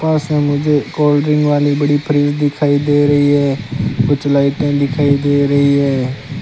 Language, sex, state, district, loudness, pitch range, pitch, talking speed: Hindi, male, Rajasthan, Bikaner, -14 LUFS, 140-145 Hz, 145 Hz, 170 wpm